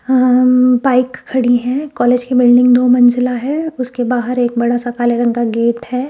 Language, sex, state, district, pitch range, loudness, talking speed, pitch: Hindi, female, Rajasthan, Jaipur, 245-255 Hz, -13 LUFS, 185 wpm, 250 Hz